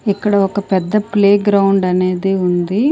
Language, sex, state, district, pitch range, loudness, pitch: Telugu, female, Andhra Pradesh, Sri Satya Sai, 185-205 Hz, -14 LUFS, 200 Hz